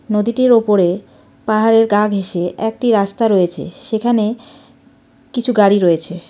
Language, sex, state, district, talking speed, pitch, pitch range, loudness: Bengali, female, West Bengal, Darjeeling, 115 wpm, 215 Hz, 195-230 Hz, -15 LUFS